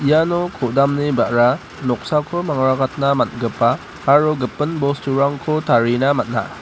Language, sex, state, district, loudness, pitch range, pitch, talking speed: Garo, male, Meghalaya, West Garo Hills, -18 LUFS, 130-150 Hz, 140 Hz, 100 wpm